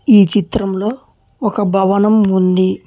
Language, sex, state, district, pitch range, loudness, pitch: Telugu, male, Telangana, Hyderabad, 190-215 Hz, -14 LUFS, 200 Hz